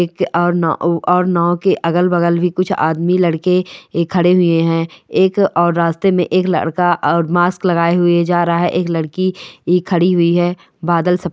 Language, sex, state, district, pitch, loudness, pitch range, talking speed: Hindi, female, Chhattisgarh, Balrampur, 175 Hz, -15 LUFS, 170-180 Hz, 175 wpm